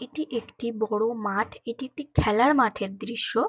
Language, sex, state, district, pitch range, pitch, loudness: Bengali, female, West Bengal, Kolkata, 220-260 Hz, 235 Hz, -26 LUFS